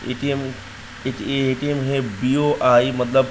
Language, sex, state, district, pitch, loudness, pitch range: Hindi, male, Uttar Pradesh, Gorakhpur, 130 Hz, -20 LUFS, 125-135 Hz